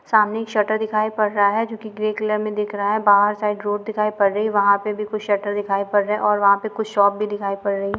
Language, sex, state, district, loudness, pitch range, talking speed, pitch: Hindi, female, Jharkhand, Sahebganj, -20 LUFS, 205-215 Hz, 310 wpm, 210 Hz